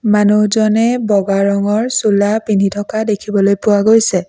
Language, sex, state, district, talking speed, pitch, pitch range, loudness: Assamese, female, Assam, Sonitpur, 125 wpm, 210 Hz, 200-220 Hz, -13 LUFS